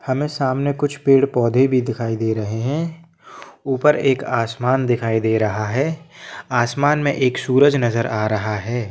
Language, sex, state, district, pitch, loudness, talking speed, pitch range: Hindi, male, Jharkhand, Sahebganj, 130 Hz, -19 LUFS, 170 wpm, 115-140 Hz